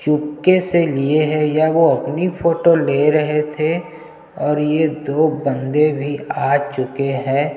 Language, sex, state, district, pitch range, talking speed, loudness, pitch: Hindi, male, Chhattisgarh, Jashpur, 145-160 Hz, 150 wpm, -17 LUFS, 150 Hz